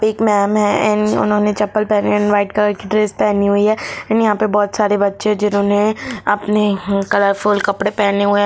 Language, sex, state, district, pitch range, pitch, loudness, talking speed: Hindi, female, Bihar, Gopalganj, 205-210 Hz, 210 Hz, -15 LUFS, 220 wpm